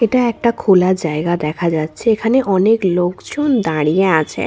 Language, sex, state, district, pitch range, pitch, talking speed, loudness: Bengali, female, West Bengal, Purulia, 165-230 Hz, 190 Hz, 145 wpm, -16 LUFS